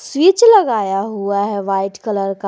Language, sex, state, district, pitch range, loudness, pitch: Hindi, female, Jharkhand, Garhwa, 195-235 Hz, -15 LUFS, 200 Hz